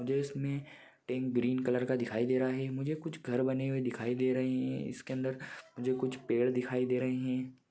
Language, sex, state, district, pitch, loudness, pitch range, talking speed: Hindi, male, Maharashtra, Pune, 130 Hz, -34 LUFS, 125-130 Hz, 225 wpm